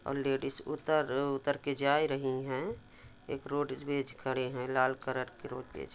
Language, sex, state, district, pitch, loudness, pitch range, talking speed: Hindi, male, Jharkhand, Sahebganj, 135 Hz, -34 LUFS, 130-140 Hz, 150 wpm